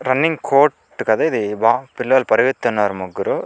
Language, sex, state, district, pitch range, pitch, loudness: Telugu, male, Andhra Pradesh, Chittoor, 105-135 Hz, 130 Hz, -17 LUFS